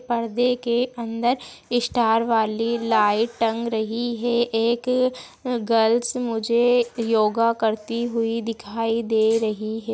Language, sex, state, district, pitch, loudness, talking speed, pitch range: Hindi, female, Chhattisgarh, Jashpur, 230 Hz, -22 LUFS, 115 wpm, 225-240 Hz